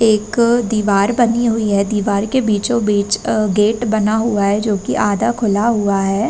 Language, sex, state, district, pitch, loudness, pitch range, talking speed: Hindi, female, Uttar Pradesh, Varanasi, 215 Hz, -16 LUFS, 205-230 Hz, 190 wpm